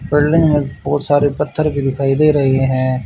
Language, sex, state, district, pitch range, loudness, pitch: Hindi, male, Haryana, Charkhi Dadri, 135-150 Hz, -15 LUFS, 145 Hz